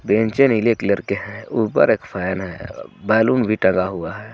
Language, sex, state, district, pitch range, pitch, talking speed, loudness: Hindi, male, Jharkhand, Garhwa, 95-115 Hz, 110 Hz, 195 wpm, -19 LUFS